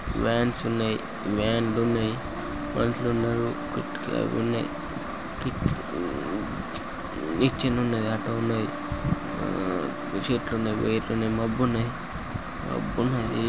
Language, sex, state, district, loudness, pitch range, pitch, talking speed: Telugu, male, Andhra Pradesh, Guntur, -27 LUFS, 110-120 Hz, 115 Hz, 70 wpm